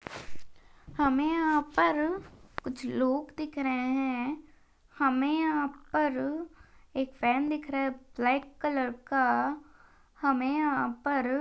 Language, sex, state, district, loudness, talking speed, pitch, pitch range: Hindi, female, Maharashtra, Pune, -30 LUFS, 115 wpm, 280 Hz, 265-300 Hz